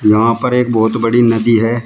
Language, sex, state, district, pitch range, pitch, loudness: Hindi, male, Uttar Pradesh, Shamli, 115-120 Hz, 115 Hz, -13 LUFS